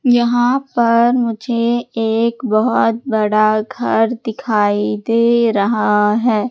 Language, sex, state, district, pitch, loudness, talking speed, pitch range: Hindi, female, Madhya Pradesh, Katni, 230 Hz, -15 LUFS, 100 wpm, 215-240 Hz